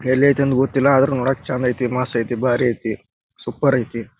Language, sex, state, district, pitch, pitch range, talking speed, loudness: Kannada, male, Karnataka, Bijapur, 125 Hz, 120-135 Hz, 200 wpm, -19 LUFS